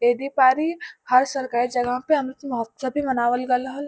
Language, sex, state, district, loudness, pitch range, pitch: Bhojpuri, female, Uttar Pradesh, Varanasi, -22 LUFS, 245-280 Hz, 260 Hz